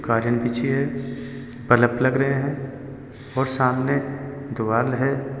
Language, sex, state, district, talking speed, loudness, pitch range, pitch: Hindi, male, Uttar Pradesh, Saharanpur, 90 wpm, -22 LUFS, 125-135 Hz, 130 Hz